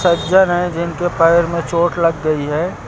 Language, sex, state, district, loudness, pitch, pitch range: Hindi, male, Uttar Pradesh, Lucknow, -15 LUFS, 170 Hz, 165-175 Hz